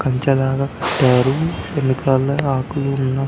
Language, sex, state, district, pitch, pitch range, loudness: Telugu, male, Telangana, Karimnagar, 135 Hz, 130-140 Hz, -18 LUFS